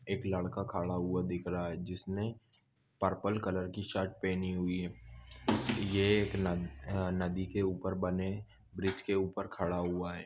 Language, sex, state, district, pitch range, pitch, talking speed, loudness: Hindi, male, Goa, North and South Goa, 90-100 Hz, 95 Hz, 170 wpm, -35 LUFS